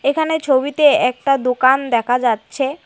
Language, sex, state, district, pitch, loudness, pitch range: Bengali, female, West Bengal, Cooch Behar, 270 Hz, -16 LUFS, 250-290 Hz